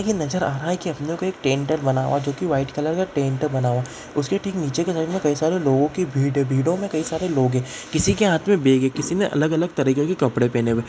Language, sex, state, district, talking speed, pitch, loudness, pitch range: Hindi, male, Bihar, Darbhanga, 305 wpm, 150 Hz, -21 LUFS, 135-175 Hz